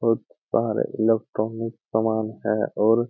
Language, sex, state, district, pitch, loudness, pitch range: Hindi, male, Jharkhand, Jamtara, 110 Hz, -24 LUFS, 110-115 Hz